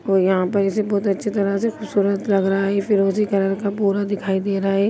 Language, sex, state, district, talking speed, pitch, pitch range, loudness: Hindi, female, Uttar Pradesh, Jyotiba Phule Nagar, 245 wpm, 200 Hz, 195-205 Hz, -20 LUFS